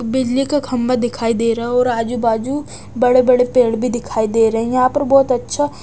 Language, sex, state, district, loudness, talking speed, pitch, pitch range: Hindi, female, Odisha, Nuapada, -16 LUFS, 225 wpm, 250 Hz, 230-255 Hz